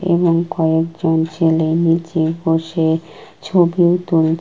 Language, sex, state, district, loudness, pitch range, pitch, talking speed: Bengali, female, West Bengal, Kolkata, -16 LUFS, 160-170 Hz, 165 Hz, 95 wpm